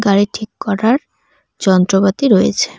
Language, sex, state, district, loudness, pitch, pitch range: Bengali, female, West Bengal, Cooch Behar, -14 LUFS, 205 Hz, 195-220 Hz